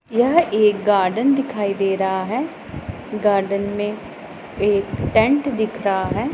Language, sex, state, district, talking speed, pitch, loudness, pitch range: Hindi, female, Punjab, Pathankot, 130 wpm, 210 Hz, -19 LUFS, 200-240 Hz